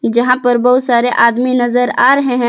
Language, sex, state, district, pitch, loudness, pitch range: Hindi, female, Jharkhand, Palamu, 245 Hz, -12 LUFS, 240-250 Hz